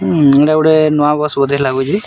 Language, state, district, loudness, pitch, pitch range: Sambalpuri, Odisha, Sambalpur, -12 LUFS, 150 Hz, 140-155 Hz